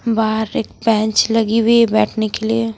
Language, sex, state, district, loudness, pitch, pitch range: Hindi, female, Bihar, West Champaran, -16 LUFS, 220 Hz, 220-230 Hz